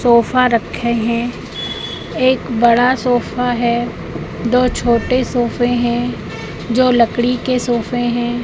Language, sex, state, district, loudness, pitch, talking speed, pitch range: Hindi, female, Madhya Pradesh, Katni, -16 LUFS, 240 Hz, 115 wpm, 235-245 Hz